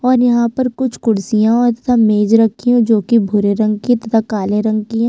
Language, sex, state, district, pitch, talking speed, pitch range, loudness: Hindi, female, Chhattisgarh, Sukma, 225 Hz, 245 wpm, 215-240 Hz, -14 LUFS